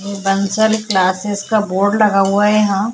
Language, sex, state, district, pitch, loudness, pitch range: Hindi, female, Chhattisgarh, Korba, 200 Hz, -15 LUFS, 195-215 Hz